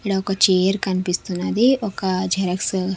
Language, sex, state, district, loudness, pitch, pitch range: Telugu, female, Andhra Pradesh, Sri Satya Sai, -20 LUFS, 190 Hz, 185-195 Hz